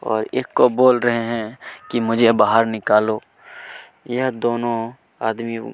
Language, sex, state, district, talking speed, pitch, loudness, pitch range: Hindi, male, Chhattisgarh, Kabirdham, 135 wpm, 115 Hz, -19 LUFS, 110-120 Hz